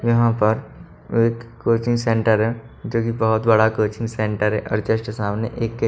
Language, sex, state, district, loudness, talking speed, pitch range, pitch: Hindi, male, Haryana, Charkhi Dadri, -20 LUFS, 175 wpm, 110-115 Hz, 115 Hz